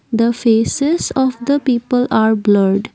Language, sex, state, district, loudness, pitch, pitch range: English, female, Assam, Kamrup Metropolitan, -15 LUFS, 235 Hz, 220-260 Hz